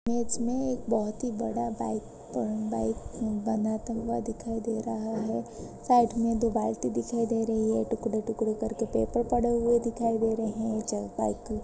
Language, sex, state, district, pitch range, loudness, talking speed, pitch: Hindi, female, Uttar Pradesh, Jyotiba Phule Nagar, 215-230 Hz, -29 LUFS, 180 wpm, 225 Hz